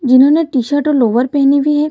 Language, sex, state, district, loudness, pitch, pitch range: Hindi, female, Bihar, Gaya, -12 LUFS, 280 Hz, 255-295 Hz